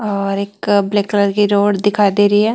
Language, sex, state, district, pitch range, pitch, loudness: Marwari, female, Rajasthan, Nagaur, 200-205 Hz, 205 Hz, -15 LUFS